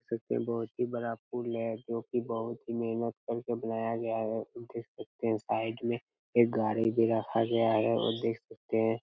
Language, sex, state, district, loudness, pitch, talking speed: Hindi, male, Chhattisgarh, Raigarh, -32 LUFS, 115 Hz, 215 wpm